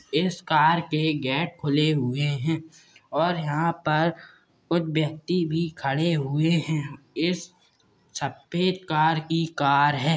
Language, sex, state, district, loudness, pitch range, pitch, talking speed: Hindi, male, Maharashtra, Chandrapur, -25 LUFS, 145-170 Hz, 160 Hz, 130 wpm